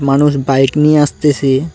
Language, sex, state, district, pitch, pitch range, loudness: Bengali, male, West Bengal, Cooch Behar, 140 Hz, 135-150 Hz, -12 LUFS